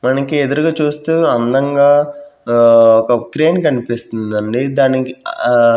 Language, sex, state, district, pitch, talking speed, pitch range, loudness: Telugu, male, Andhra Pradesh, Sri Satya Sai, 130 Hz, 105 wpm, 120-145 Hz, -13 LUFS